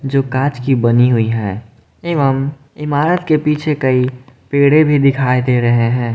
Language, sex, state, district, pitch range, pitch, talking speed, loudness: Hindi, male, Jharkhand, Garhwa, 120-145 Hz, 135 Hz, 165 wpm, -14 LUFS